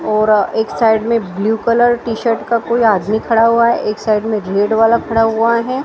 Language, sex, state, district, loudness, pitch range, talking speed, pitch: Hindi, female, Maharashtra, Mumbai Suburban, -14 LUFS, 215-235 Hz, 225 wpm, 225 Hz